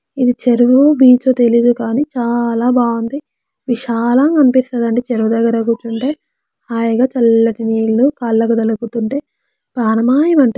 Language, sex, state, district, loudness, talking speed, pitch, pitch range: Telugu, female, Telangana, Karimnagar, -14 LUFS, 115 wpm, 240 Hz, 230-260 Hz